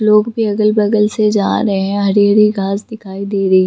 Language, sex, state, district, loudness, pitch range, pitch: Hindi, female, Jharkhand, Sahebganj, -14 LUFS, 195-215 Hz, 210 Hz